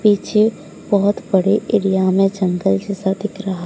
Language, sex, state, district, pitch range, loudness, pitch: Hindi, female, Odisha, Sambalpur, 190-205 Hz, -17 LUFS, 195 Hz